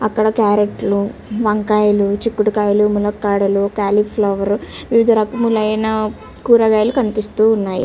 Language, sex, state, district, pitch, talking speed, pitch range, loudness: Telugu, female, Andhra Pradesh, Chittoor, 210 Hz, 85 wpm, 205-220 Hz, -16 LUFS